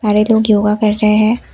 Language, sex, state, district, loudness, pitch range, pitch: Hindi, female, Assam, Kamrup Metropolitan, -12 LUFS, 210-220 Hz, 215 Hz